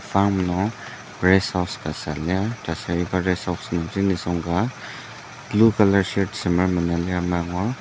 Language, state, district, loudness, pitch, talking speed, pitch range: Ao, Nagaland, Dimapur, -22 LUFS, 90 Hz, 155 wpm, 85-100 Hz